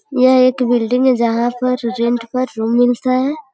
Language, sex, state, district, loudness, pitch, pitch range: Hindi, female, Uttar Pradesh, Gorakhpur, -15 LUFS, 250 Hz, 240-255 Hz